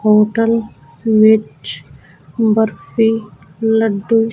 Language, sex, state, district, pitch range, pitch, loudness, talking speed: Punjabi, female, Punjab, Fazilka, 165-225 Hz, 215 Hz, -15 LUFS, 55 wpm